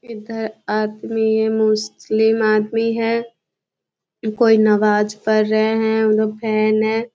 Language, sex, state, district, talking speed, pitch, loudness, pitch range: Hindi, female, Bihar, Jahanabad, 125 wpm, 220 Hz, -18 LUFS, 215-225 Hz